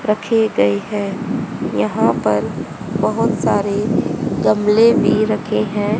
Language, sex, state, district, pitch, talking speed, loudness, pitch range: Hindi, female, Haryana, Rohtak, 210 Hz, 110 wpm, -17 LUFS, 205-220 Hz